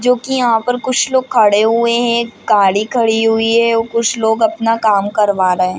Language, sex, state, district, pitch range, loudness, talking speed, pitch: Hindi, female, Bihar, Madhepura, 215-235 Hz, -13 LUFS, 225 wpm, 230 Hz